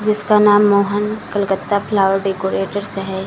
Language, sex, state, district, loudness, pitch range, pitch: Hindi, female, Chhattisgarh, Balrampur, -16 LUFS, 195-210 Hz, 205 Hz